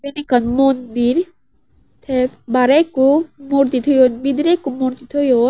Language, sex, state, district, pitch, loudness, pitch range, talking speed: Chakma, female, Tripura, West Tripura, 270 Hz, -16 LUFS, 255-285 Hz, 130 wpm